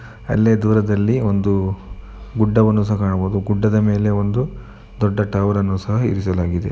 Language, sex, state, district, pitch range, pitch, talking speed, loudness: Kannada, male, Karnataka, Mysore, 100-110 Hz, 105 Hz, 125 wpm, -18 LUFS